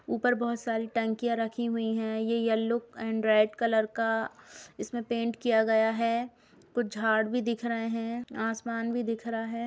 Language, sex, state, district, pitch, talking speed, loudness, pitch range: Hindi, female, Bihar, Gopalganj, 230 Hz, 180 wpm, -29 LUFS, 225-235 Hz